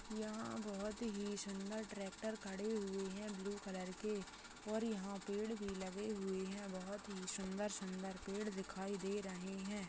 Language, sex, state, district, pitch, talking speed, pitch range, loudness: Hindi, female, Uttar Pradesh, Hamirpur, 200 Hz, 160 wpm, 195-210 Hz, -45 LUFS